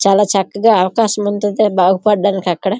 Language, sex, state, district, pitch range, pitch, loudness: Telugu, female, Andhra Pradesh, Srikakulam, 190-210 Hz, 205 Hz, -14 LUFS